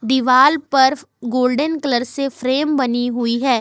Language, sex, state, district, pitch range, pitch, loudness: Hindi, female, Jharkhand, Ranchi, 245-280 Hz, 260 Hz, -17 LUFS